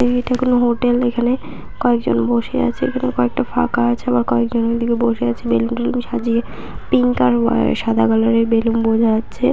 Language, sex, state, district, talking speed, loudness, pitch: Bengali, female, West Bengal, Purulia, 165 wpm, -17 LUFS, 225 Hz